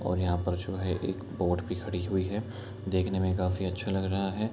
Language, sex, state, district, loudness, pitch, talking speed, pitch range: Hindi, male, Bihar, Kishanganj, -31 LUFS, 95 Hz, 240 wpm, 90-95 Hz